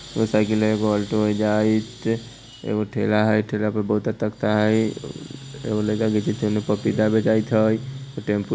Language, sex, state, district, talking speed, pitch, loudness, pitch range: Hindi, female, Bihar, Muzaffarpur, 145 wpm, 110 Hz, -22 LUFS, 105-110 Hz